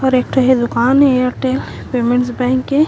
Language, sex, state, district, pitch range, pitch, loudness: Chhattisgarhi, female, Chhattisgarh, Korba, 245-265 Hz, 255 Hz, -15 LUFS